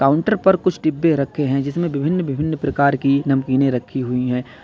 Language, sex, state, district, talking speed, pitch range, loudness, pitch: Hindi, male, Uttar Pradesh, Lalitpur, 195 wpm, 135-155 Hz, -19 LUFS, 140 Hz